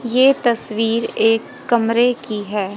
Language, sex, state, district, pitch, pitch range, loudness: Hindi, female, Haryana, Jhajjar, 230 Hz, 225-250 Hz, -17 LUFS